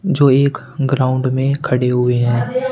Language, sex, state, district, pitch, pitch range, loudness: Hindi, male, Uttar Pradesh, Shamli, 130 Hz, 125-140 Hz, -16 LUFS